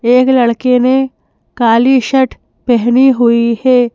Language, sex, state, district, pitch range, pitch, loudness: Hindi, female, Madhya Pradesh, Bhopal, 235-260 Hz, 250 Hz, -11 LUFS